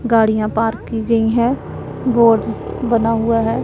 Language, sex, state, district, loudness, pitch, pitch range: Hindi, male, Punjab, Pathankot, -17 LUFS, 230 Hz, 225-235 Hz